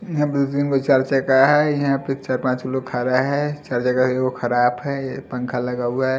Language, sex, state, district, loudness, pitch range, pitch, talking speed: Hindi, male, Delhi, New Delhi, -20 LUFS, 125-140 Hz, 130 Hz, 115 wpm